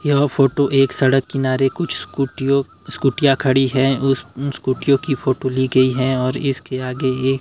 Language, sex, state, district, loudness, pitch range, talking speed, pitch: Hindi, male, Himachal Pradesh, Shimla, -18 LUFS, 130-140 Hz, 180 wpm, 135 Hz